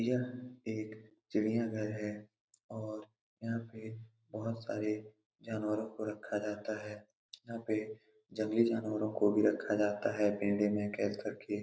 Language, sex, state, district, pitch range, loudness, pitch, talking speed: Hindi, male, Bihar, Saran, 105-110 Hz, -36 LUFS, 110 Hz, 130 wpm